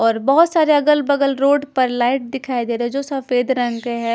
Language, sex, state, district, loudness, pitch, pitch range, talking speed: Hindi, female, Chhattisgarh, Raipur, -17 LUFS, 260 Hz, 240-280 Hz, 245 wpm